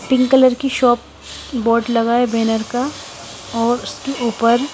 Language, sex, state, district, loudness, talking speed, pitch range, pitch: Hindi, female, Himachal Pradesh, Shimla, -17 LUFS, 150 wpm, 230-260 Hz, 240 Hz